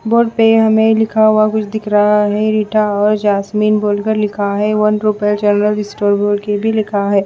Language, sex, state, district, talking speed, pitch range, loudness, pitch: Hindi, female, Bihar, West Champaran, 190 wpm, 205-215 Hz, -13 LUFS, 210 Hz